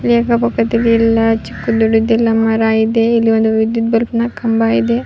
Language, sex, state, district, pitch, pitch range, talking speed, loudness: Kannada, female, Karnataka, Raichur, 225 Hz, 225-230 Hz, 140 wpm, -14 LUFS